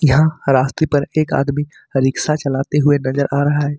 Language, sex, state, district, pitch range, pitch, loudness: Hindi, male, Jharkhand, Ranchi, 135-150 Hz, 145 Hz, -17 LUFS